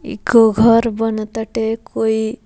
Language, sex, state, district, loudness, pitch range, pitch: Bhojpuri, female, Bihar, Muzaffarpur, -16 LUFS, 220-230 Hz, 225 Hz